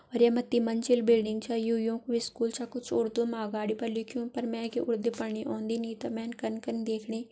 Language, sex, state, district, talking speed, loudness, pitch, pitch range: Garhwali, female, Uttarakhand, Tehri Garhwal, 240 wpm, -31 LUFS, 230 Hz, 225-235 Hz